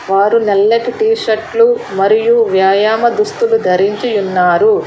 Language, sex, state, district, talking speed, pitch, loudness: Telugu, female, Telangana, Hyderabad, 110 wpm, 220 Hz, -12 LUFS